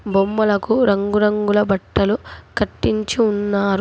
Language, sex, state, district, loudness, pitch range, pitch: Telugu, female, Telangana, Hyderabad, -18 LUFS, 200-215 Hz, 205 Hz